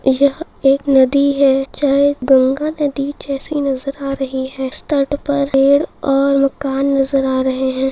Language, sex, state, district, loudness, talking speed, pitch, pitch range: Hindi, female, Bihar, Saharsa, -16 LUFS, 165 wpm, 275 Hz, 270-280 Hz